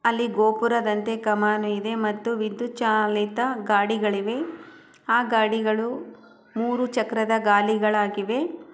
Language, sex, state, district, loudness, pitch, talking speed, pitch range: Kannada, female, Karnataka, Chamarajanagar, -23 LUFS, 225 Hz, 95 wpm, 210-240 Hz